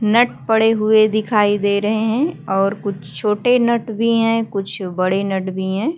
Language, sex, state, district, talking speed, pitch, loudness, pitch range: Hindi, female, Chhattisgarh, Kabirdham, 170 wpm, 215 Hz, -17 LUFS, 195-225 Hz